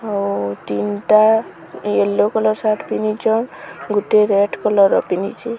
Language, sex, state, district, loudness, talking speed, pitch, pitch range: Odia, female, Odisha, Sambalpur, -17 LUFS, 130 wpm, 210 Hz, 140-215 Hz